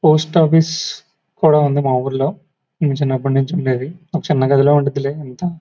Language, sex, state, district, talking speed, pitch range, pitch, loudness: Telugu, male, Andhra Pradesh, Guntur, 170 wpm, 135-165 Hz, 145 Hz, -17 LUFS